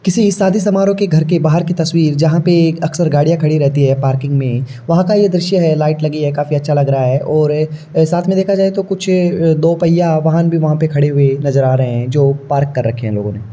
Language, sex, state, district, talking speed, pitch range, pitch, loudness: Hindi, male, Uttar Pradesh, Varanasi, 255 wpm, 140-175 Hz, 155 Hz, -13 LUFS